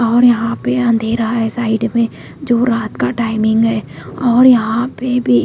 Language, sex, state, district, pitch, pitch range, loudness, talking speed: Hindi, female, Odisha, Malkangiri, 230 Hz, 220-240 Hz, -14 LUFS, 175 wpm